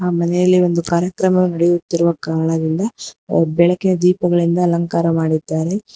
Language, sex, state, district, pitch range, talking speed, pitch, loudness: Kannada, female, Karnataka, Bangalore, 165-180 Hz, 110 wpm, 170 Hz, -16 LUFS